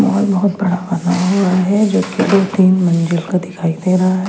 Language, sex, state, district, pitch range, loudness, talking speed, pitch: Hindi, female, Chhattisgarh, Raipur, 180-195 Hz, -15 LUFS, 225 wpm, 185 Hz